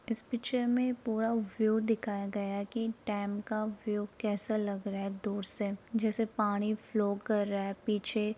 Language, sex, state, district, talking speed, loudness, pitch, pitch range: Hindi, female, Uttar Pradesh, Jalaun, 185 wpm, -33 LUFS, 215 Hz, 205-225 Hz